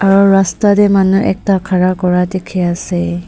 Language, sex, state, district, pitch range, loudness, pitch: Nagamese, female, Nagaland, Dimapur, 180-195 Hz, -12 LUFS, 185 Hz